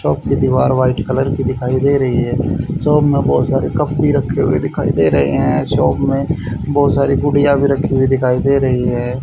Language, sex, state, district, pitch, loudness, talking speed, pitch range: Hindi, male, Haryana, Charkhi Dadri, 135 Hz, -15 LUFS, 220 wpm, 125-140 Hz